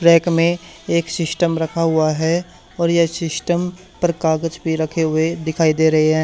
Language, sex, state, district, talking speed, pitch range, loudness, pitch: Hindi, male, Haryana, Charkhi Dadri, 180 wpm, 160-170 Hz, -18 LUFS, 165 Hz